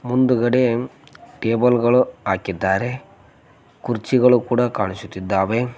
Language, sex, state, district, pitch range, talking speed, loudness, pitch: Kannada, male, Karnataka, Koppal, 100-125 Hz, 75 wpm, -19 LUFS, 120 Hz